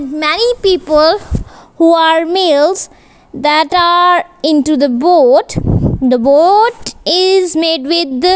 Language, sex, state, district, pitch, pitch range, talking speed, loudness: English, female, Punjab, Kapurthala, 330 Hz, 305-365 Hz, 120 wpm, -11 LUFS